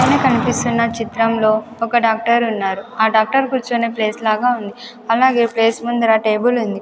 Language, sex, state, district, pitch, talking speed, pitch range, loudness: Telugu, female, Andhra Pradesh, Sri Satya Sai, 230 Hz, 150 wpm, 220-240 Hz, -16 LUFS